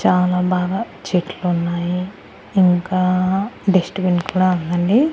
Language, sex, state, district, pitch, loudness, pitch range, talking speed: Telugu, female, Andhra Pradesh, Annamaya, 180 Hz, -18 LUFS, 180-190 Hz, 95 wpm